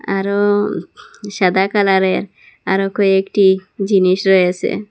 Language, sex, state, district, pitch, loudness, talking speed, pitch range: Bengali, female, Assam, Hailakandi, 195 Hz, -15 LUFS, 85 wpm, 190-200 Hz